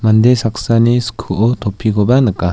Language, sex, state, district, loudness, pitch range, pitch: Garo, male, Meghalaya, West Garo Hills, -14 LUFS, 105-120 Hz, 115 Hz